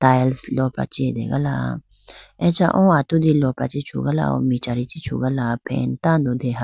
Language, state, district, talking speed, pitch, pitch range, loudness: Idu Mishmi, Arunachal Pradesh, Lower Dibang Valley, 145 wpm, 130 Hz, 125-150 Hz, -20 LUFS